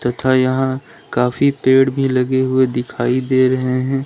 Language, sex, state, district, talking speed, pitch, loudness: Hindi, male, Uttar Pradesh, Lalitpur, 165 wpm, 130 Hz, -16 LUFS